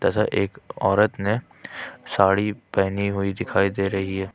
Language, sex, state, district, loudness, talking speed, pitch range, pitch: Hindi, male, Jharkhand, Ranchi, -23 LUFS, 150 wpm, 95-105 Hz, 100 Hz